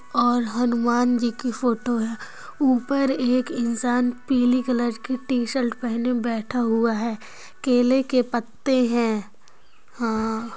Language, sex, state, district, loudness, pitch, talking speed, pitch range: Hindi, male, Andhra Pradesh, Anantapur, -23 LUFS, 240 Hz, 125 wpm, 230-250 Hz